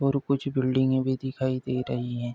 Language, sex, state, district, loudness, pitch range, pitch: Hindi, male, Uttar Pradesh, Deoria, -27 LUFS, 125-130 Hz, 130 Hz